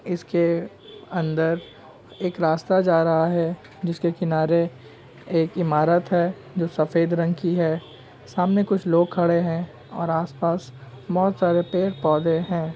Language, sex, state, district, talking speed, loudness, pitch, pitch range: Hindi, male, Bihar, Saran, 130 wpm, -22 LUFS, 170 Hz, 160-175 Hz